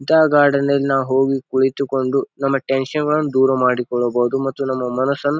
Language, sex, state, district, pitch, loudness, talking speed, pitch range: Kannada, male, Karnataka, Bijapur, 135 Hz, -18 LUFS, 165 wpm, 130-140 Hz